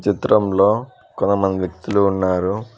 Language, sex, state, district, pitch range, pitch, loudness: Telugu, male, Telangana, Mahabubabad, 95-100 Hz, 100 Hz, -18 LUFS